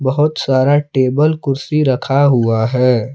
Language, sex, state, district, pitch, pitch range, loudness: Hindi, male, Jharkhand, Palamu, 135 Hz, 130-145 Hz, -14 LUFS